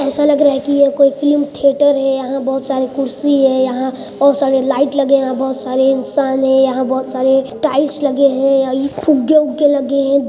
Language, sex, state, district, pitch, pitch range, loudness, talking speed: Hindi, male, Chhattisgarh, Sarguja, 275 Hz, 265-285 Hz, -14 LUFS, 205 wpm